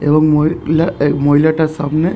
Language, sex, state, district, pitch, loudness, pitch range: Bengali, male, West Bengal, Jhargram, 155 Hz, -14 LUFS, 150-160 Hz